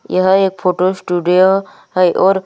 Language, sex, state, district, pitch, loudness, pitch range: Hindi, female, Chhattisgarh, Sukma, 185 Hz, -14 LUFS, 180-190 Hz